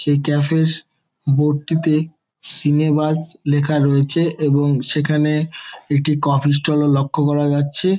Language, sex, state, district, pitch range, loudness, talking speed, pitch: Bengali, male, West Bengal, Jalpaiguri, 145-155 Hz, -18 LUFS, 130 wpm, 150 Hz